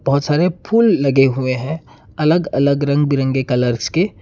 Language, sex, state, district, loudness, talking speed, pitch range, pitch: Hindi, male, Karnataka, Bangalore, -16 LUFS, 170 wpm, 135-160 Hz, 140 Hz